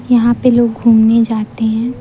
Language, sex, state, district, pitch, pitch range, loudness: Hindi, female, Madhya Pradesh, Umaria, 230 Hz, 225-240 Hz, -12 LUFS